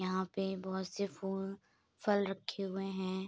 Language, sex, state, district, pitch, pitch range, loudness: Hindi, female, Bihar, Saharsa, 195 Hz, 190-195 Hz, -38 LUFS